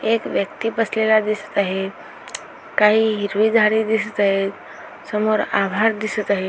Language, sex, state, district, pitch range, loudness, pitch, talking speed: Marathi, female, Maharashtra, Aurangabad, 200-220 Hz, -19 LUFS, 215 Hz, 130 wpm